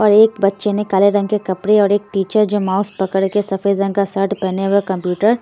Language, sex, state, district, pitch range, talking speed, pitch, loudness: Hindi, female, Haryana, Jhajjar, 195-205 Hz, 245 wpm, 200 Hz, -16 LUFS